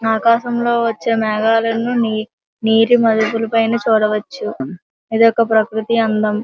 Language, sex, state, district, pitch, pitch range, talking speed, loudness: Telugu, female, Andhra Pradesh, Srikakulam, 225 Hz, 220-230 Hz, 110 wpm, -16 LUFS